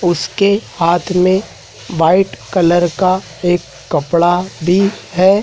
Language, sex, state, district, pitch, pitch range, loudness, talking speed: Hindi, male, Madhya Pradesh, Dhar, 180 Hz, 170-190 Hz, -14 LUFS, 110 wpm